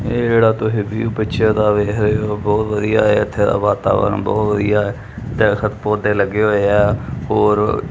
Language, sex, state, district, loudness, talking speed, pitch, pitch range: Punjabi, male, Punjab, Kapurthala, -16 LUFS, 180 wpm, 105 Hz, 105-110 Hz